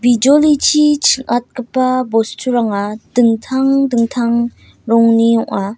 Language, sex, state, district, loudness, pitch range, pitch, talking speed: Garo, female, Meghalaya, West Garo Hills, -14 LUFS, 230-265 Hz, 240 Hz, 75 wpm